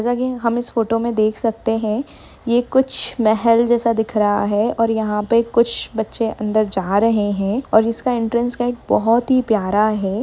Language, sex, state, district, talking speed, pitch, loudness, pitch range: Hindi, female, Chhattisgarh, Rajnandgaon, 195 wpm, 230 Hz, -18 LUFS, 215-235 Hz